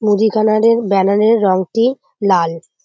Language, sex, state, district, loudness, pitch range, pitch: Bengali, female, West Bengal, Jhargram, -14 LUFS, 190-225 Hz, 210 Hz